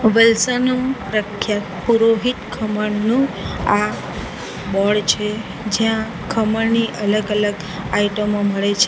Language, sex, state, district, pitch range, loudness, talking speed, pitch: Gujarati, female, Gujarat, Valsad, 205-225 Hz, -19 LUFS, 90 wpm, 210 Hz